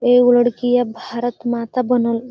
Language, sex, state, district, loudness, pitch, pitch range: Magahi, female, Bihar, Gaya, -17 LUFS, 245 Hz, 235-245 Hz